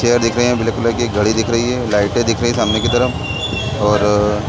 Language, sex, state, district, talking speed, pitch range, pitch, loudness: Hindi, male, Chhattisgarh, Balrampur, 255 wpm, 105-120 Hz, 115 Hz, -16 LUFS